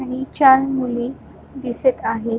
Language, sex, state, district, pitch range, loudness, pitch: Marathi, female, Maharashtra, Solapur, 240-265 Hz, -18 LUFS, 260 Hz